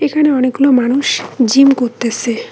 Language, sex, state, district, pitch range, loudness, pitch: Bengali, female, West Bengal, Cooch Behar, 240-280 Hz, -13 LUFS, 260 Hz